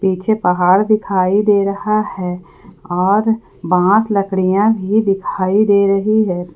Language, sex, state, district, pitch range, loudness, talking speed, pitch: Hindi, female, Jharkhand, Palamu, 185-210 Hz, -15 LUFS, 130 wpm, 195 Hz